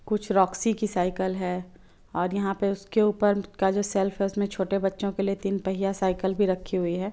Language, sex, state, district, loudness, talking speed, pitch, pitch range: Hindi, female, Chhattisgarh, Bilaspur, -26 LUFS, 220 wpm, 195 Hz, 185-200 Hz